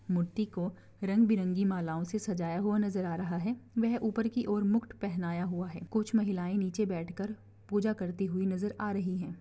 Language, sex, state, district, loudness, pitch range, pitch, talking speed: Hindi, female, Chhattisgarh, Raigarh, -33 LUFS, 180-215 Hz, 195 Hz, 205 wpm